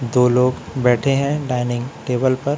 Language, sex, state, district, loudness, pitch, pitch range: Hindi, male, Chhattisgarh, Raipur, -19 LUFS, 125 Hz, 125-135 Hz